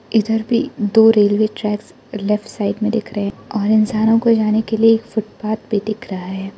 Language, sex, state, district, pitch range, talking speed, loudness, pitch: Hindi, female, Arunachal Pradesh, Lower Dibang Valley, 210-225 Hz, 210 wpm, -17 LUFS, 215 Hz